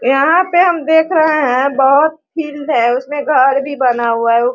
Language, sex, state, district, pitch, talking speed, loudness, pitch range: Hindi, female, Bihar, Sitamarhi, 285 Hz, 200 wpm, -13 LUFS, 255-315 Hz